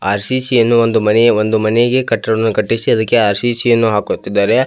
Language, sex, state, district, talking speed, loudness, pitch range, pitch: Kannada, male, Karnataka, Belgaum, 155 wpm, -13 LUFS, 110-120 Hz, 115 Hz